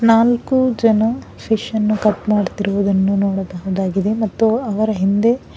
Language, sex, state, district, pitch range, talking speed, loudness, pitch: Kannada, female, Karnataka, Bangalore, 200-225 Hz, 110 wpm, -17 LUFS, 215 Hz